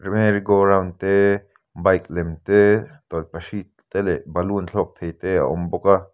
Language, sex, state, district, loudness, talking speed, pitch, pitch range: Mizo, male, Mizoram, Aizawl, -20 LUFS, 175 wpm, 95 Hz, 85-100 Hz